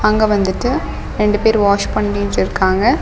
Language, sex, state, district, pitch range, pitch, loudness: Tamil, female, Tamil Nadu, Namakkal, 200-210 Hz, 205 Hz, -16 LUFS